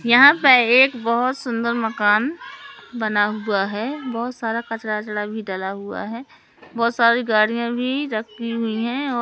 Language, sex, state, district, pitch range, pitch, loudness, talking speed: Hindi, male, Madhya Pradesh, Katni, 215-250 Hz, 235 Hz, -20 LUFS, 155 wpm